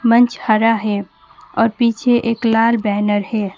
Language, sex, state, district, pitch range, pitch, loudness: Hindi, female, West Bengal, Alipurduar, 210-235 Hz, 225 Hz, -16 LUFS